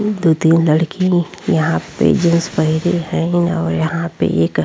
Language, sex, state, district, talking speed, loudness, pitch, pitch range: Bhojpuri, female, Uttar Pradesh, Ghazipur, 170 wpm, -16 LUFS, 165 Hz, 160-175 Hz